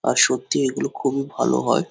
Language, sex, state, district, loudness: Bengali, male, West Bengal, Kolkata, -21 LUFS